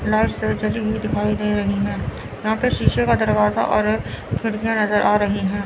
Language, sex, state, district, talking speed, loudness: Hindi, female, Chandigarh, Chandigarh, 200 wpm, -20 LUFS